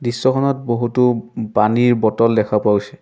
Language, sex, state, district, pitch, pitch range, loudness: Assamese, male, Assam, Sonitpur, 120 Hz, 110-125 Hz, -17 LUFS